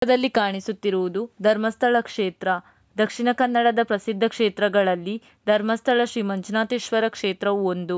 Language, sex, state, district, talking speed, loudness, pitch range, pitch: Kannada, female, Karnataka, Dakshina Kannada, 100 wpm, -23 LUFS, 200-235 Hz, 215 Hz